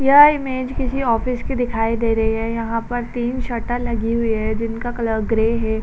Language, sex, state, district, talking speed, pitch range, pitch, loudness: Hindi, female, Uttar Pradesh, Budaun, 205 wpm, 225-250 Hz, 235 Hz, -20 LUFS